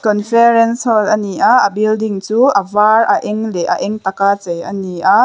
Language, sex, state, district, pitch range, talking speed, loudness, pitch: Mizo, female, Mizoram, Aizawl, 200-220 Hz, 215 wpm, -13 LUFS, 210 Hz